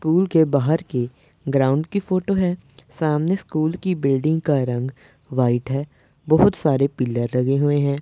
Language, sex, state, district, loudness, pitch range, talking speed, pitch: Hindi, male, Punjab, Pathankot, -21 LUFS, 135-160 Hz, 165 wpm, 145 Hz